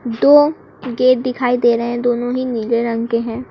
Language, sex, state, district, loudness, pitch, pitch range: Hindi, female, Uttar Pradesh, Lucknow, -16 LUFS, 245 Hz, 235-255 Hz